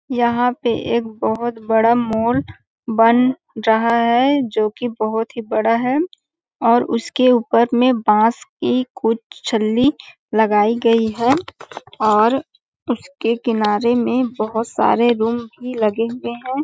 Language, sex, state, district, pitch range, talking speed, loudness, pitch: Hindi, female, Chhattisgarh, Balrampur, 225-250 Hz, 135 wpm, -18 LUFS, 235 Hz